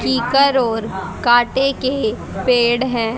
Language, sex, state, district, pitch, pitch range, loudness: Hindi, female, Haryana, Jhajjar, 240 Hz, 225-260 Hz, -17 LUFS